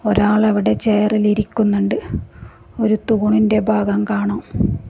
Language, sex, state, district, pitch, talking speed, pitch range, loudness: Malayalam, female, Kerala, Kasaragod, 210 Hz, 100 wpm, 205-215 Hz, -17 LUFS